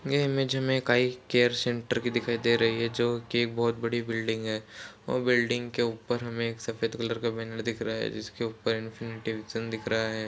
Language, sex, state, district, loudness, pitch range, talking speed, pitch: Hindi, male, Uttar Pradesh, Jalaun, -29 LUFS, 115-120 Hz, 215 wpm, 115 Hz